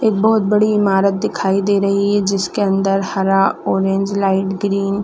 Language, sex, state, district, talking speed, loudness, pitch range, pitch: Hindi, female, Chhattisgarh, Raigarh, 180 wpm, -16 LUFS, 195-205 Hz, 195 Hz